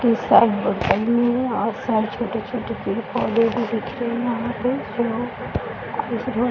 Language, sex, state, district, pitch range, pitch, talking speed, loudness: Hindi, female, Bihar, Jahanabad, 230-240 Hz, 235 Hz, 110 wpm, -22 LUFS